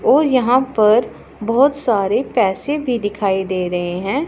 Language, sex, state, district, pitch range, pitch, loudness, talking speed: Hindi, female, Punjab, Pathankot, 195-275 Hz, 230 Hz, -17 LUFS, 155 wpm